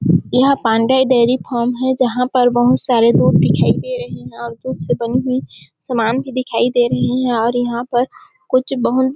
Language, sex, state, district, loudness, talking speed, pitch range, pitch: Hindi, female, Chhattisgarh, Sarguja, -16 LUFS, 195 wpm, 230-255 Hz, 245 Hz